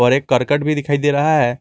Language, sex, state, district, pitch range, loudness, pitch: Hindi, male, Jharkhand, Garhwa, 125-145 Hz, -16 LUFS, 145 Hz